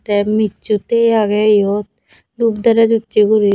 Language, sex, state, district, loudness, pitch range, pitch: Chakma, female, Tripura, Dhalai, -14 LUFS, 205-225 Hz, 215 Hz